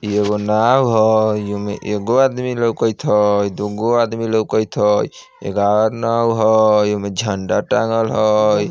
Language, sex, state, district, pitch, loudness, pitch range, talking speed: Bajjika, male, Bihar, Vaishali, 110 Hz, -16 LUFS, 105-115 Hz, 140 wpm